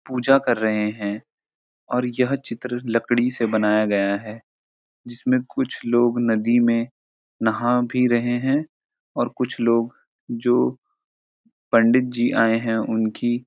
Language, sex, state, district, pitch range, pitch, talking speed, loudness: Hindi, male, Uttarakhand, Uttarkashi, 115-125 Hz, 120 Hz, 135 wpm, -21 LUFS